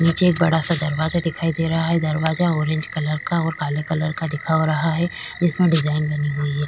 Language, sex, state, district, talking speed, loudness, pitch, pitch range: Hindi, female, Maharashtra, Chandrapur, 225 wpm, -21 LUFS, 160 Hz, 155-165 Hz